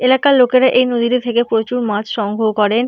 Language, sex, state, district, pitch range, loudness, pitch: Bengali, female, West Bengal, North 24 Parganas, 220-250 Hz, -15 LUFS, 240 Hz